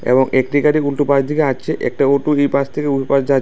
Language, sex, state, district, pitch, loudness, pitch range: Bengali, male, Tripura, West Tripura, 140 Hz, -16 LUFS, 135-145 Hz